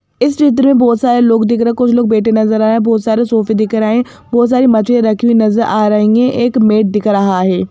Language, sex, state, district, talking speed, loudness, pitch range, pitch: Hindi, female, Madhya Pradesh, Bhopal, 270 wpm, -11 LUFS, 215-240 Hz, 225 Hz